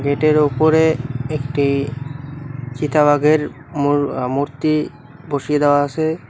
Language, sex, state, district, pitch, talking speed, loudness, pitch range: Bengali, male, West Bengal, Cooch Behar, 145 Hz, 85 wpm, -18 LUFS, 140-150 Hz